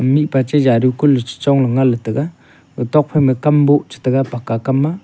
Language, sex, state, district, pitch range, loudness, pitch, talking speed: Wancho, male, Arunachal Pradesh, Longding, 125-145 Hz, -15 LUFS, 135 Hz, 225 wpm